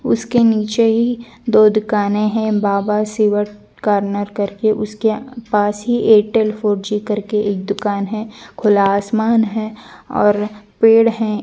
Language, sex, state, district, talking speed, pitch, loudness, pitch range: Hindi, female, Bihar, Purnia, 135 wpm, 215 Hz, -16 LUFS, 205-225 Hz